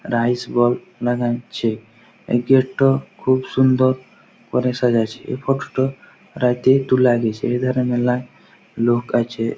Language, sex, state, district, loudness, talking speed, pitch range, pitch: Bengali, male, West Bengal, Jhargram, -19 LUFS, 95 wpm, 120-130 Hz, 125 Hz